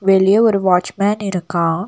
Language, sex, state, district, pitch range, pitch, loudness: Tamil, female, Tamil Nadu, Nilgiris, 180-200 Hz, 190 Hz, -15 LUFS